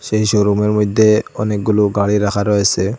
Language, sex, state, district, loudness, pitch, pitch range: Bengali, male, Assam, Hailakandi, -15 LUFS, 105 Hz, 100-105 Hz